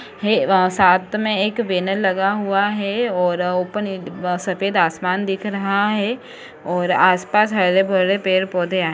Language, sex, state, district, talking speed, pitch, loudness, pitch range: Marathi, female, Maharashtra, Sindhudurg, 155 wpm, 190 Hz, -19 LUFS, 180-205 Hz